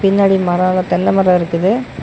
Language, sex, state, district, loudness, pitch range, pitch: Tamil, male, Tamil Nadu, Namakkal, -14 LUFS, 175-195 Hz, 185 Hz